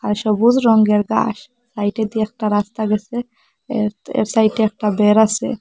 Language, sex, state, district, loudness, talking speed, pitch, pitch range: Bengali, male, Assam, Hailakandi, -17 LUFS, 160 wpm, 220 Hz, 210-230 Hz